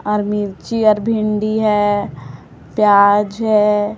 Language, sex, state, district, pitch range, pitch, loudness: Hindi, female, Chhattisgarh, Raipur, 205-215 Hz, 210 Hz, -15 LUFS